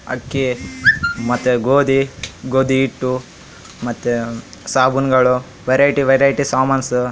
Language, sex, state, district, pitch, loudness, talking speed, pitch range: Kannada, male, Karnataka, Raichur, 130 Hz, -16 LUFS, 95 wpm, 125-135 Hz